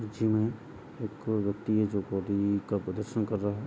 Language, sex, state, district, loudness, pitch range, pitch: Hindi, male, Uttar Pradesh, Jalaun, -31 LUFS, 100-110 Hz, 105 Hz